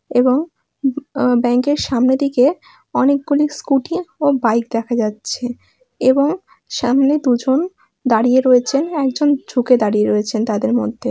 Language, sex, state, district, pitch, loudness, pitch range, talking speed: Bengali, female, West Bengal, Malda, 260 Hz, -17 LUFS, 245-285 Hz, 135 wpm